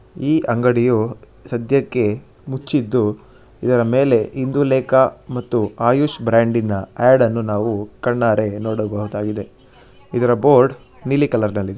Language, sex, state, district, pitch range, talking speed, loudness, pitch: Kannada, male, Karnataka, Shimoga, 105-130 Hz, 100 wpm, -18 LUFS, 120 Hz